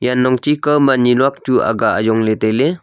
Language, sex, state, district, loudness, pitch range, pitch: Wancho, male, Arunachal Pradesh, Longding, -14 LUFS, 110-140 Hz, 130 Hz